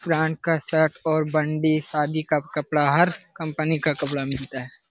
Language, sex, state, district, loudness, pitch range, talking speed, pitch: Hindi, male, Bihar, Lakhisarai, -23 LUFS, 150-160 Hz, 160 wpm, 155 Hz